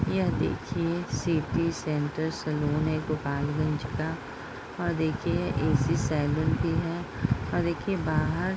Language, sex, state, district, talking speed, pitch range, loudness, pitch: Hindi, female, Bihar, Bhagalpur, 125 wpm, 150-165 Hz, -28 LUFS, 155 Hz